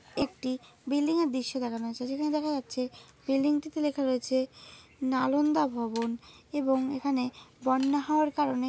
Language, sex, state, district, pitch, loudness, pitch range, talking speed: Bengali, female, West Bengal, Dakshin Dinajpur, 270 Hz, -30 LUFS, 255-295 Hz, 145 wpm